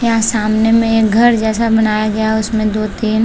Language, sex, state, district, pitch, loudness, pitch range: Hindi, female, Chhattisgarh, Balrampur, 220 Hz, -13 LUFS, 215-225 Hz